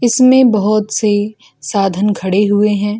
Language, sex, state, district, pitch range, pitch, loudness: Hindi, female, Bihar, Gaya, 205-215 Hz, 210 Hz, -13 LUFS